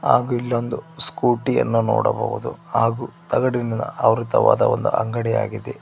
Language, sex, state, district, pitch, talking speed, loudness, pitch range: Kannada, male, Karnataka, Koppal, 120 Hz, 105 wpm, -20 LUFS, 115-120 Hz